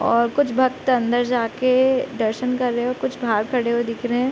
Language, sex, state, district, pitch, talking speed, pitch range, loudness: Hindi, female, Bihar, Sitamarhi, 245 Hz, 235 wpm, 235-255 Hz, -20 LUFS